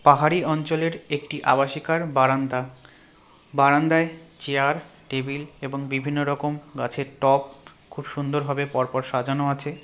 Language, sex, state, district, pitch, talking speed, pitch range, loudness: Bengali, male, West Bengal, Darjeeling, 145 Hz, 110 wpm, 135-150 Hz, -24 LUFS